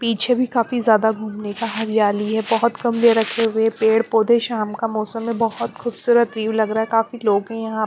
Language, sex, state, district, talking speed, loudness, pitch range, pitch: Hindi, female, Bihar, Patna, 190 wpm, -19 LUFS, 220-230 Hz, 225 Hz